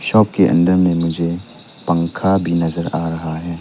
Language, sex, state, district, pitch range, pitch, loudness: Hindi, male, Arunachal Pradesh, Lower Dibang Valley, 85-90 Hz, 85 Hz, -17 LUFS